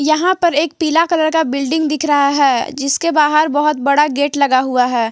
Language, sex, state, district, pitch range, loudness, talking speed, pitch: Hindi, female, Jharkhand, Garhwa, 280-315 Hz, -14 LUFS, 210 wpm, 295 Hz